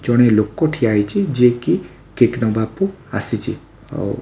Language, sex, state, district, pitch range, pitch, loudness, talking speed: Odia, male, Odisha, Khordha, 110-140 Hz, 120 Hz, -18 LUFS, 140 wpm